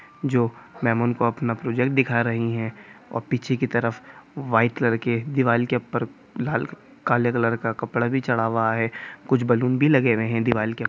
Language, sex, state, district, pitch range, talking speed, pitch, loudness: Hindi, male, Bihar, Gopalganj, 115-125 Hz, 195 wpm, 120 Hz, -23 LUFS